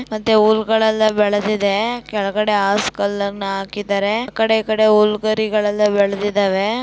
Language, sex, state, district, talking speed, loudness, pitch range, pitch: Kannada, female, Karnataka, Dakshina Kannada, 105 wpm, -17 LUFS, 200-220 Hz, 210 Hz